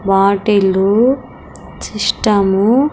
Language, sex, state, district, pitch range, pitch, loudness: Telugu, female, Andhra Pradesh, Sri Satya Sai, 195-220 Hz, 205 Hz, -13 LUFS